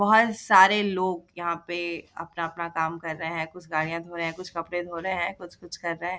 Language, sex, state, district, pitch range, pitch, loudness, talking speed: Hindi, female, Bihar, Jahanabad, 165-185 Hz, 175 Hz, -26 LUFS, 235 wpm